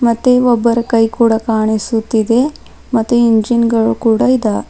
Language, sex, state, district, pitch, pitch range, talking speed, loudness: Kannada, female, Karnataka, Bidar, 230 Hz, 225-240 Hz, 130 wpm, -13 LUFS